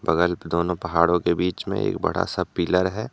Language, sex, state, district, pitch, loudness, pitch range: Hindi, male, Jharkhand, Deoghar, 90 Hz, -23 LUFS, 85-90 Hz